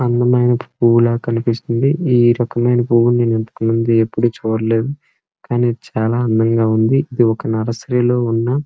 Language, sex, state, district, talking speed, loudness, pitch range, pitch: Telugu, male, Andhra Pradesh, Srikakulam, 130 wpm, -16 LUFS, 115-120 Hz, 120 Hz